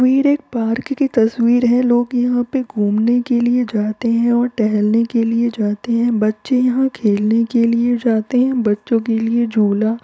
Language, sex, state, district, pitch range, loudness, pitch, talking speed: Hindi, female, Uttar Pradesh, Varanasi, 220-245 Hz, -16 LUFS, 235 Hz, 195 wpm